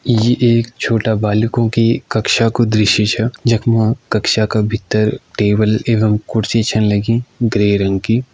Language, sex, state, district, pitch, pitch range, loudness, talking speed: Hindi, male, Uttarakhand, Uttarkashi, 110 Hz, 105-115 Hz, -15 LUFS, 160 wpm